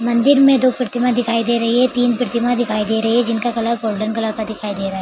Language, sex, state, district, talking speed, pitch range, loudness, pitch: Hindi, female, Bihar, Begusarai, 285 wpm, 220-245 Hz, -17 LUFS, 235 Hz